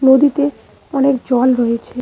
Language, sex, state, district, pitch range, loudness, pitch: Bengali, female, West Bengal, Cooch Behar, 250-275 Hz, -15 LUFS, 265 Hz